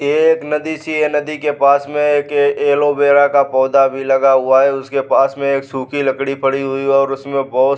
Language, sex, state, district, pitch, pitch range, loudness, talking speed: Hindi, male, Bihar, Vaishali, 140 Hz, 135-145 Hz, -15 LUFS, 230 wpm